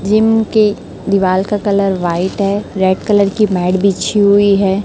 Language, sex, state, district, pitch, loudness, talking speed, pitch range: Hindi, female, Chhattisgarh, Raipur, 200 Hz, -13 LUFS, 175 wpm, 190-210 Hz